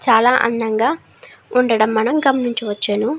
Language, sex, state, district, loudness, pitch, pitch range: Telugu, female, Andhra Pradesh, Srikakulam, -17 LUFS, 230 Hz, 220-250 Hz